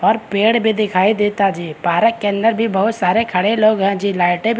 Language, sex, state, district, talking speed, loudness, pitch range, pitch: Hindi, male, Bihar, Begusarai, 235 wpm, -16 LUFS, 195-225 Hz, 205 Hz